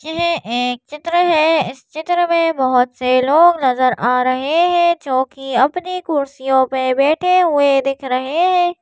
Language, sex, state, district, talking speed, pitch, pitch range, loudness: Hindi, female, Madhya Pradesh, Bhopal, 165 wpm, 285 Hz, 260-340 Hz, -16 LUFS